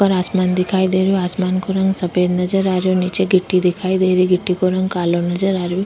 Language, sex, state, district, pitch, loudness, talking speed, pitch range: Rajasthani, female, Rajasthan, Churu, 185 Hz, -17 LUFS, 235 wpm, 180-190 Hz